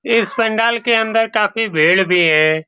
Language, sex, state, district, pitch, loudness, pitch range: Hindi, male, Bihar, Saran, 220 Hz, -14 LUFS, 175-225 Hz